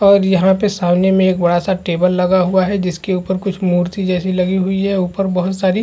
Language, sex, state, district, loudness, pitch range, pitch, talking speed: Hindi, male, Chhattisgarh, Rajnandgaon, -15 LUFS, 180-190 Hz, 185 Hz, 245 wpm